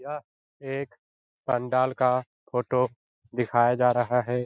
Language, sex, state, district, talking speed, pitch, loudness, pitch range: Hindi, male, Bihar, Jahanabad, 120 wpm, 125 Hz, -26 LUFS, 120-130 Hz